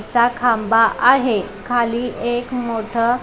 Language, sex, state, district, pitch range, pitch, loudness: Marathi, female, Maharashtra, Dhule, 225-245 Hz, 235 Hz, -18 LUFS